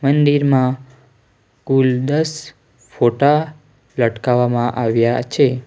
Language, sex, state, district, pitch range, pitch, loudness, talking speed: Gujarati, male, Gujarat, Valsad, 120-140 Hz, 130 Hz, -17 LUFS, 75 wpm